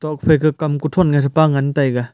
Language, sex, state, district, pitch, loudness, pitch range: Wancho, male, Arunachal Pradesh, Longding, 150 Hz, -16 LUFS, 140-155 Hz